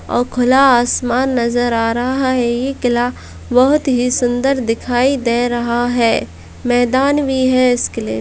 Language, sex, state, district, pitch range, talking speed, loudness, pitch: Hindi, female, Bihar, Purnia, 240-260 Hz, 160 wpm, -15 LUFS, 245 Hz